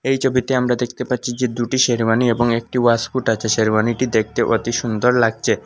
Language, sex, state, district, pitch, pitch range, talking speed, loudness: Bengali, male, Assam, Hailakandi, 120 Hz, 115-125 Hz, 180 wpm, -18 LUFS